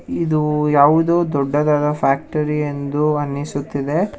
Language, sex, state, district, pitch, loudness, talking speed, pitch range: Kannada, male, Karnataka, Bangalore, 150 Hz, -18 LUFS, 85 wpm, 140-150 Hz